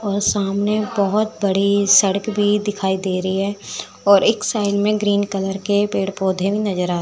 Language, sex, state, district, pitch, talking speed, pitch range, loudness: Hindi, female, Chandigarh, Chandigarh, 200 Hz, 180 wpm, 195-205 Hz, -18 LUFS